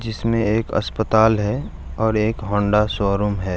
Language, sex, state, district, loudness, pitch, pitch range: Hindi, male, Bihar, Jahanabad, -20 LUFS, 105 Hz, 100-110 Hz